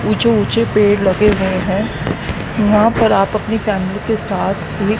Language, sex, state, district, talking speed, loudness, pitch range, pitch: Hindi, female, Haryana, Jhajjar, 155 wpm, -15 LUFS, 195-215 Hz, 210 Hz